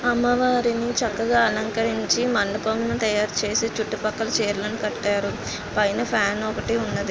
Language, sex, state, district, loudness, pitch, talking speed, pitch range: Telugu, female, Telangana, Nalgonda, -23 LUFS, 220 Hz, 110 wpm, 210-235 Hz